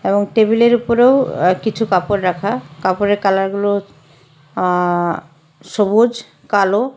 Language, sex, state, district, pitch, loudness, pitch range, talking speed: Bengali, female, Assam, Hailakandi, 195 Hz, -16 LUFS, 175-220 Hz, 105 wpm